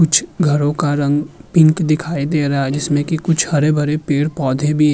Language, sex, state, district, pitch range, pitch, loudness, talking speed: Hindi, male, Uttar Pradesh, Muzaffarnagar, 145-160 Hz, 150 Hz, -16 LUFS, 195 wpm